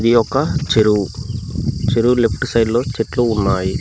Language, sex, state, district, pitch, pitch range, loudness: Telugu, male, Telangana, Mahabubabad, 115 Hz, 110-120 Hz, -17 LUFS